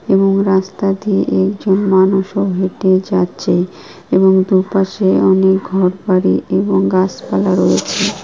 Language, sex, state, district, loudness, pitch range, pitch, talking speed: Bengali, female, West Bengal, Kolkata, -14 LUFS, 185-195 Hz, 190 Hz, 100 wpm